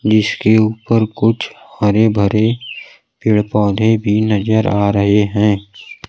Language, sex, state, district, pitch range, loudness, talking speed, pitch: Hindi, male, Bihar, Kaimur, 105-110 Hz, -15 LUFS, 120 wpm, 105 Hz